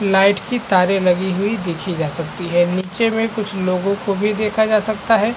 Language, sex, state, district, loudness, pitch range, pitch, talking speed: Hindi, male, Chhattisgarh, Bilaspur, -18 LUFS, 185-215 Hz, 195 Hz, 210 wpm